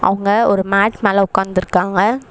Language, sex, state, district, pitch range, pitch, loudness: Tamil, female, Tamil Nadu, Chennai, 190-205 Hz, 195 Hz, -15 LUFS